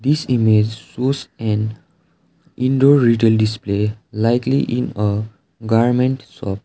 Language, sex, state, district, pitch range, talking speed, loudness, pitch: English, male, Sikkim, Gangtok, 105-130 Hz, 110 wpm, -18 LUFS, 115 Hz